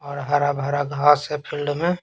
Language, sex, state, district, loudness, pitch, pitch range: Hindi, male, Bihar, Patna, -21 LUFS, 145 Hz, 145-150 Hz